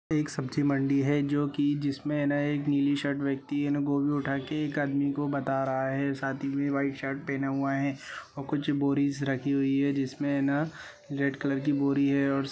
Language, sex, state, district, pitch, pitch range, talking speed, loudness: Hindi, male, Uttar Pradesh, Gorakhpur, 140 Hz, 140-145 Hz, 220 wpm, -29 LUFS